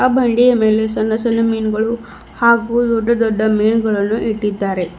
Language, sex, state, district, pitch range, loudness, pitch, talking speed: Kannada, female, Karnataka, Bidar, 215-235 Hz, -15 LUFS, 225 Hz, 130 wpm